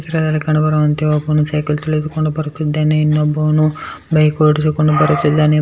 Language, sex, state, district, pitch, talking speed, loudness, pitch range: Kannada, male, Karnataka, Bellary, 155 Hz, 120 wpm, -15 LUFS, 150-155 Hz